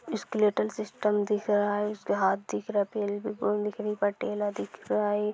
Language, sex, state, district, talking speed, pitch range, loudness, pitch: Hindi, female, Maharashtra, Nagpur, 200 wpm, 205-210 Hz, -29 LUFS, 210 Hz